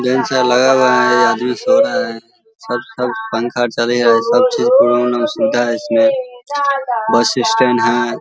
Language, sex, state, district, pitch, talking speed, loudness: Hindi, male, Bihar, Vaishali, 130 Hz, 185 wpm, -14 LUFS